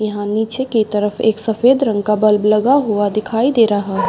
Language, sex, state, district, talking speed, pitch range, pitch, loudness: Hindi, female, Bihar, Madhepura, 205 wpm, 210-230 Hz, 215 Hz, -15 LUFS